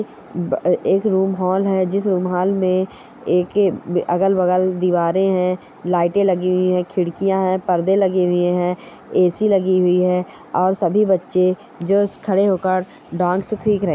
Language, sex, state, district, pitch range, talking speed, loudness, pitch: Bhojpuri, female, Bihar, Saran, 180-195 Hz, 165 wpm, -18 LUFS, 185 Hz